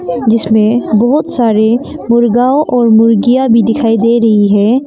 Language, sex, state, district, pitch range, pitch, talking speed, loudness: Hindi, female, Arunachal Pradesh, Longding, 220-245 Hz, 235 Hz, 135 wpm, -10 LUFS